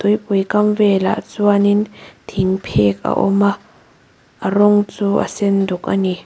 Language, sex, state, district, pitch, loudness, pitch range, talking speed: Mizo, female, Mizoram, Aizawl, 200 Hz, -16 LUFS, 195-205 Hz, 145 wpm